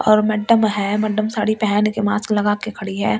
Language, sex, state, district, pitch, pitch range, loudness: Hindi, female, Delhi, New Delhi, 210 Hz, 205-215 Hz, -18 LUFS